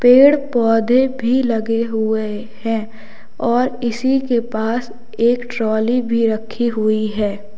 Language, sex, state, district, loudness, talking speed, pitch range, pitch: Hindi, male, Uttar Pradesh, Lalitpur, -17 LUFS, 125 wpm, 220-245 Hz, 230 Hz